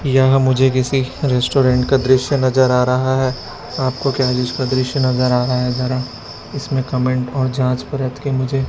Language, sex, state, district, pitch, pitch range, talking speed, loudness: Hindi, male, Chhattisgarh, Raipur, 130 Hz, 125-135 Hz, 180 wpm, -17 LUFS